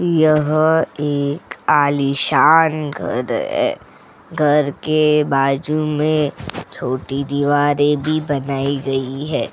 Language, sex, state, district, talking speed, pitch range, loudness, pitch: Hindi, female, Goa, North and South Goa, 95 wpm, 140-155 Hz, -17 LUFS, 145 Hz